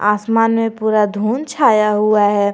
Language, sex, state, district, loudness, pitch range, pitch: Hindi, male, Jharkhand, Garhwa, -15 LUFS, 210-225 Hz, 215 Hz